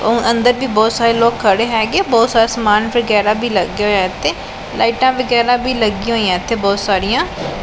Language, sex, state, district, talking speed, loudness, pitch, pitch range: Punjabi, female, Punjab, Pathankot, 190 wpm, -14 LUFS, 225 Hz, 200-235 Hz